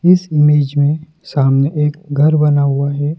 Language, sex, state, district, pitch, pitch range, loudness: Hindi, male, Madhya Pradesh, Dhar, 150 Hz, 145-155 Hz, -14 LUFS